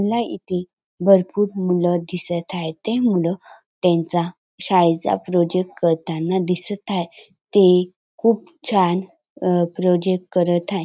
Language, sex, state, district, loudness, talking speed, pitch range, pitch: Marathi, female, Maharashtra, Dhule, -20 LUFS, 115 wpm, 175-195 Hz, 180 Hz